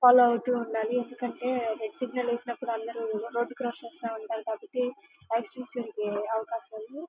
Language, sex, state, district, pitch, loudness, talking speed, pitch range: Telugu, female, Andhra Pradesh, Guntur, 235 Hz, -30 LUFS, 120 wpm, 225-250 Hz